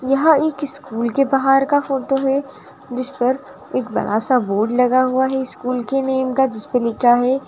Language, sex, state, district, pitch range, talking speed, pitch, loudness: Hindi, female, Bihar, Purnia, 245-270 Hz, 175 wpm, 260 Hz, -18 LUFS